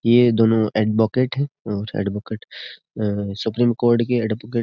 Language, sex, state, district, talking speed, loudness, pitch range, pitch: Hindi, male, Uttar Pradesh, Jyotiba Phule Nagar, 140 wpm, -20 LUFS, 105-120 Hz, 110 Hz